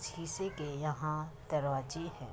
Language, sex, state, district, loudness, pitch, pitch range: Hindi, female, Uttar Pradesh, Muzaffarnagar, -38 LUFS, 155 Hz, 140-165 Hz